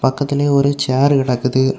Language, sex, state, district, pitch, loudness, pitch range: Tamil, male, Tamil Nadu, Kanyakumari, 140 Hz, -16 LUFS, 130-140 Hz